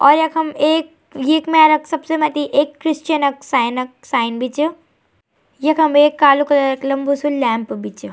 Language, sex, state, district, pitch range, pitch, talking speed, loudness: Garhwali, female, Uttarakhand, Tehri Garhwal, 275-310 Hz, 290 Hz, 185 wpm, -16 LUFS